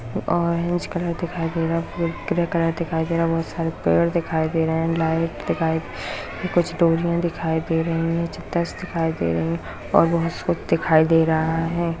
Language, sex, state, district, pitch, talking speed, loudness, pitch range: Hindi, female, Bihar, Kishanganj, 165 Hz, 190 wpm, -22 LUFS, 160-170 Hz